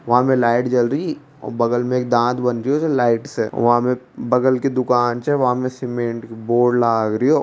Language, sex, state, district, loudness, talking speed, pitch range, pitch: Hindi, male, Rajasthan, Nagaur, -18 LUFS, 210 wpm, 120-125 Hz, 120 Hz